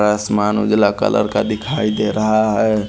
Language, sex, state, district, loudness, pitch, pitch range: Hindi, male, Haryana, Charkhi Dadri, -17 LUFS, 105 Hz, 105-110 Hz